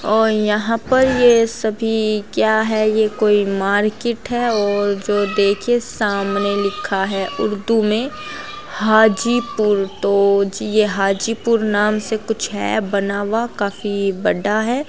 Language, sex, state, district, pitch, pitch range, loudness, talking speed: Hindi, female, Bihar, Gaya, 215 Hz, 205-225 Hz, -17 LUFS, 130 wpm